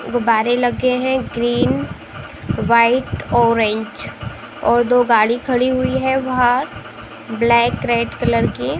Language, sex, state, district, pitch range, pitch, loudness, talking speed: Hindi, female, Uttar Pradesh, Jalaun, 235-255 Hz, 240 Hz, -16 LUFS, 115 wpm